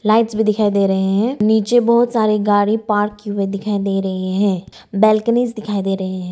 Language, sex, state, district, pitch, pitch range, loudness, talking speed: Hindi, female, Arunachal Pradesh, Lower Dibang Valley, 210 Hz, 195-220 Hz, -17 LUFS, 200 wpm